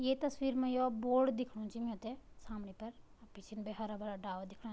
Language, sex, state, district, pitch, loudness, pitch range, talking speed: Garhwali, female, Uttarakhand, Tehri Garhwal, 225 Hz, -39 LUFS, 210-255 Hz, 215 wpm